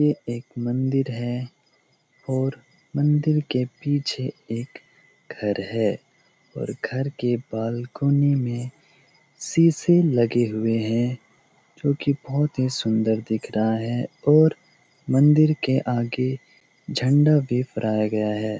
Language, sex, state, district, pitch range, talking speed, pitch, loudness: Hindi, male, Bihar, Lakhisarai, 120-150 Hz, 115 wpm, 130 Hz, -23 LUFS